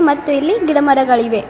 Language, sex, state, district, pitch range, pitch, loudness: Kannada, female, Karnataka, Bidar, 245-295 Hz, 285 Hz, -14 LUFS